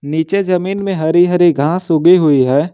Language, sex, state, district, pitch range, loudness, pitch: Hindi, male, Jharkhand, Ranchi, 155-180 Hz, -13 LUFS, 170 Hz